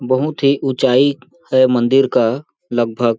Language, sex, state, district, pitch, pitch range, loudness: Hindi, male, Chhattisgarh, Balrampur, 130 Hz, 125-140 Hz, -15 LUFS